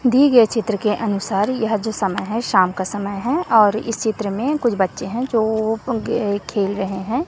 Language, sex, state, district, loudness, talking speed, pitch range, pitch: Hindi, female, Chhattisgarh, Raipur, -19 LUFS, 205 wpm, 200-235 Hz, 220 Hz